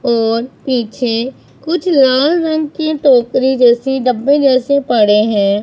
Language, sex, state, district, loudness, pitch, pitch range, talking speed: Hindi, female, Punjab, Pathankot, -13 LUFS, 260 Hz, 235-285 Hz, 130 wpm